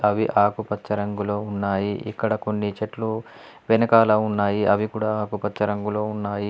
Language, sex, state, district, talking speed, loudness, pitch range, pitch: Telugu, male, Telangana, Adilabad, 130 wpm, -23 LUFS, 105-110 Hz, 105 Hz